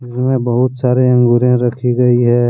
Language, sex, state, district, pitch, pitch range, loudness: Hindi, male, Jharkhand, Deoghar, 125 Hz, 120-125 Hz, -13 LUFS